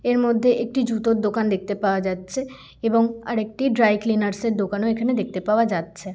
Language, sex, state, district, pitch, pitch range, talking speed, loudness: Bengali, female, West Bengal, Kolkata, 225 Hz, 205-235 Hz, 195 wpm, -22 LUFS